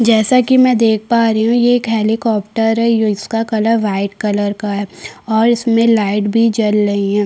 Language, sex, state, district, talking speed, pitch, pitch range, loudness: Hindi, female, Chhattisgarh, Kabirdham, 215 wpm, 225 Hz, 210-230 Hz, -14 LUFS